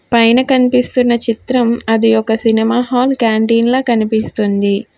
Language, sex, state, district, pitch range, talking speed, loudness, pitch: Telugu, female, Telangana, Hyderabad, 220-250 Hz, 120 wpm, -13 LUFS, 230 Hz